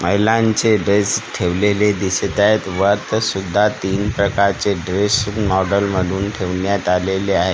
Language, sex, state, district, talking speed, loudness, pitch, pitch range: Marathi, male, Maharashtra, Gondia, 125 wpm, -17 LUFS, 100 Hz, 95-105 Hz